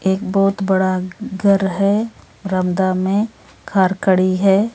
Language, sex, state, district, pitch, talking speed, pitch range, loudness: Hindi, female, Bihar, Darbhanga, 195 Hz, 115 wpm, 190-200 Hz, -17 LUFS